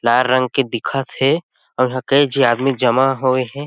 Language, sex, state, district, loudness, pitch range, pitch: Chhattisgarhi, male, Chhattisgarh, Sarguja, -17 LUFS, 125-135 Hz, 130 Hz